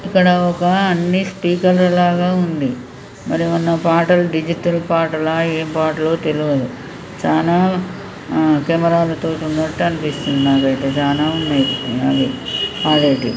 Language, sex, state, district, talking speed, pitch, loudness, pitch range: Telugu, male, Telangana, Nalgonda, 110 wpm, 165 Hz, -16 LUFS, 150-175 Hz